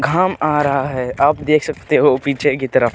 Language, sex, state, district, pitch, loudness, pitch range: Hindi, male, Uttarakhand, Tehri Garhwal, 145 Hz, -16 LUFS, 135-155 Hz